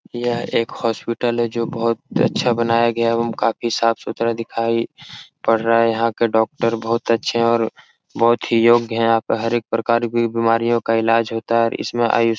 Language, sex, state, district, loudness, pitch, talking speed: Hindi, male, Bihar, Jahanabad, -19 LUFS, 115 Hz, 215 wpm